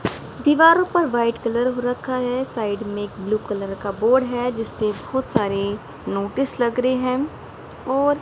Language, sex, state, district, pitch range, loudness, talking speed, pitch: Hindi, female, Haryana, Rohtak, 210-260 Hz, -21 LUFS, 170 wpm, 245 Hz